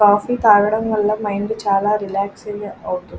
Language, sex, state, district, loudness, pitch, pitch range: Telugu, female, Andhra Pradesh, Krishna, -18 LUFS, 205 Hz, 200-215 Hz